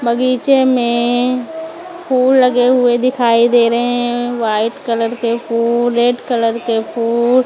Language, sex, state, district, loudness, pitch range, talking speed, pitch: Hindi, female, Maharashtra, Mumbai Suburban, -14 LUFS, 235-255 Hz, 135 wpm, 240 Hz